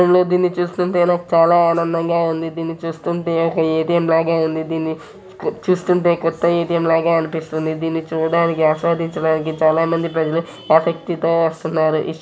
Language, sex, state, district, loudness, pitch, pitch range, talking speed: Telugu, male, Telangana, Nalgonda, -18 LUFS, 165 Hz, 160-170 Hz, 150 wpm